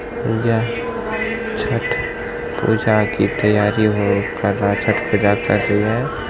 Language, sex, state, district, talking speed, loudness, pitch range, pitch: Hindi, male, Bihar, Begusarai, 125 wpm, -18 LUFS, 105-120 Hz, 110 Hz